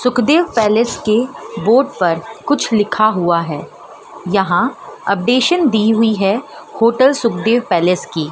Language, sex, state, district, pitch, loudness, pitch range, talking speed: Hindi, female, Madhya Pradesh, Dhar, 220 Hz, -15 LUFS, 195-250 Hz, 130 wpm